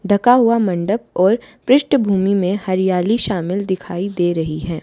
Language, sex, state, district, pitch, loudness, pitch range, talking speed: Hindi, female, Haryana, Charkhi Dadri, 195 Hz, -17 LUFS, 180-215 Hz, 150 wpm